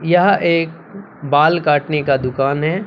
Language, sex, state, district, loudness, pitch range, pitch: Hindi, male, Bihar, Katihar, -16 LUFS, 145-175 Hz, 155 Hz